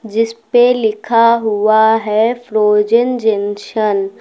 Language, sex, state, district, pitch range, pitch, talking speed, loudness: Hindi, female, Uttar Pradesh, Lucknow, 210-230 Hz, 220 Hz, 115 wpm, -13 LUFS